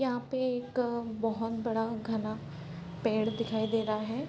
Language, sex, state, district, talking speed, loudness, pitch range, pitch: Hindi, female, Bihar, Sitamarhi, 155 wpm, -33 LUFS, 215-235 Hz, 225 Hz